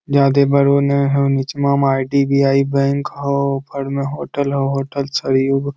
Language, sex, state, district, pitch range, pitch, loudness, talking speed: Magahi, male, Bihar, Lakhisarai, 135-140 Hz, 140 Hz, -17 LUFS, 145 wpm